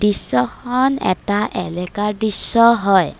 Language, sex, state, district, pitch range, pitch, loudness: Assamese, female, Assam, Kamrup Metropolitan, 180-230 Hz, 205 Hz, -16 LUFS